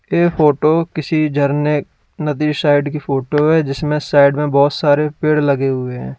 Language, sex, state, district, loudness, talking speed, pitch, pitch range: Hindi, male, Uttar Pradesh, Lalitpur, -15 LUFS, 175 wpm, 150 Hz, 140-155 Hz